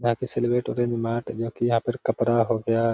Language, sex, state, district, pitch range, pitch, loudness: Hindi, male, Bihar, Gaya, 115-120 Hz, 115 Hz, -25 LUFS